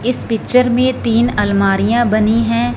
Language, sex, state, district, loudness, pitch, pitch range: Hindi, female, Punjab, Fazilka, -14 LUFS, 230 Hz, 215-245 Hz